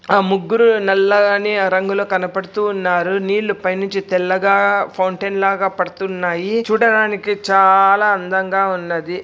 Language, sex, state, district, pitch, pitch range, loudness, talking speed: Telugu, male, Andhra Pradesh, Anantapur, 195 Hz, 185-205 Hz, -16 LUFS, 110 wpm